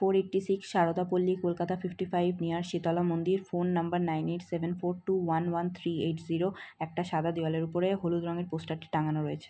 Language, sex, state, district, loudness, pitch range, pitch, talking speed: Bengali, female, West Bengal, North 24 Parganas, -31 LUFS, 165-180 Hz, 175 Hz, 210 wpm